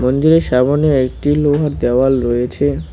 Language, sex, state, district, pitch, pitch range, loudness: Bengali, male, West Bengal, Cooch Behar, 135 Hz, 125-145 Hz, -14 LUFS